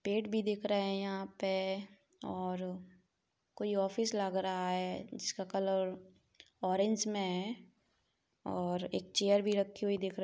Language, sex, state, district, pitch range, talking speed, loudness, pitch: Hindi, female, Jharkhand, Sahebganj, 185-205 Hz, 160 wpm, -36 LUFS, 195 Hz